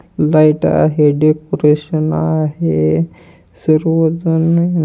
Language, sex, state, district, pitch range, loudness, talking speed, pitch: Marathi, male, Maharashtra, Pune, 150-165 Hz, -14 LUFS, 60 wpm, 155 Hz